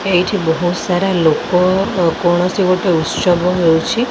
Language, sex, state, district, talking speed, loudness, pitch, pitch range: Odia, female, Odisha, Khordha, 115 wpm, -14 LUFS, 180 Hz, 175-185 Hz